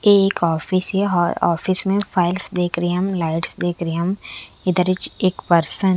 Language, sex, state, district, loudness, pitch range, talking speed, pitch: Hindi, female, Haryana, Charkhi Dadri, -19 LUFS, 175-190 Hz, 180 wpm, 180 Hz